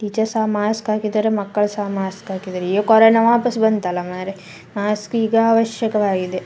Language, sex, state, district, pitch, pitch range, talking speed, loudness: Kannada, female, Karnataka, Dakshina Kannada, 210 Hz, 195-220 Hz, 150 wpm, -18 LUFS